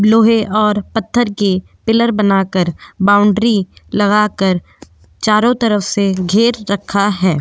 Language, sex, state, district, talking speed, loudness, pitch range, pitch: Hindi, female, Goa, North and South Goa, 115 wpm, -14 LUFS, 195-225 Hz, 205 Hz